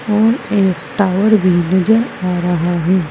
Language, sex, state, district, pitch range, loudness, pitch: Hindi, female, Uttar Pradesh, Saharanpur, 175-215 Hz, -14 LUFS, 190 Hz